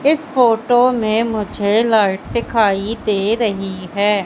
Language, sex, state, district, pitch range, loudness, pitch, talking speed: Hindi, female, Madhya Pradesh, Katni, 205-235 Hz, -16 LUFS, 220 Hz, 125 wpm